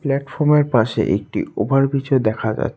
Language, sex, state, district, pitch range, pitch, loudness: Bengali, male, West Bengal, Alipurduar, 110-140 Hz, 135 Hz, -18 LUFS